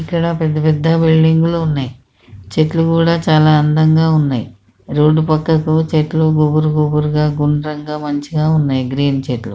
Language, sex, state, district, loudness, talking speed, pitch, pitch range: Telugu, male, Telangana, Karimnagar, -14 LUFS, 130 wpm, 155 Hz, 145-160 Hz